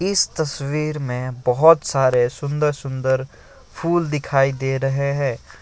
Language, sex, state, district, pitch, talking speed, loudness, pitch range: Hindi, male, Assam, Kamrup Metropolitan, 140 Hz, 130 wpm, -20 LUFS, 130-150 Hz